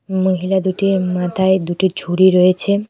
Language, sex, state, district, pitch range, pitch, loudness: Bengali, female, West Bengal, Cooch Behar, 180-190 Hz, 190 Hz, -16 LUFS